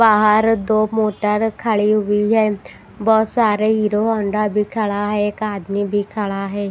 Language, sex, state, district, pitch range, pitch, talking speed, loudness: Hindi, female, Bihar, West Champaran, 205-220 Hz, 210 Hz, 160 wpm, -18 LUFS